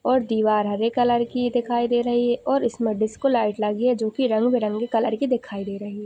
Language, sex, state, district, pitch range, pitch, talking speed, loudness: Hindi, female, Chhattisgarh, Sarguja, 215-245 Hz, 235 Hz, 235 wpm, -22 LUFS